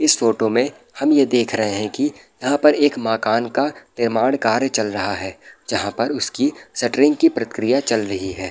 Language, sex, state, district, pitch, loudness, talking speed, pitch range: Hindi, male, Bihar, Madhepura, 120 Hz, -19 LUFS, 205 wpm, 110-145 Hz